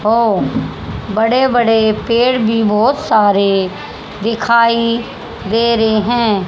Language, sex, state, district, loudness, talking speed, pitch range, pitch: Hindi, female, Haryana, Charkhi Dadri, -14 LUFS, 100 wpm, 215-235 Hz, 225 Hz